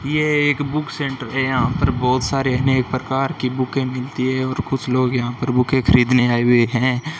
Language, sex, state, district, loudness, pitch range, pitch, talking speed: Hindi, male, Rajasthan, Bikaner, -19 LUFS, 125-135 Hz, 130 Hz, 210 wpm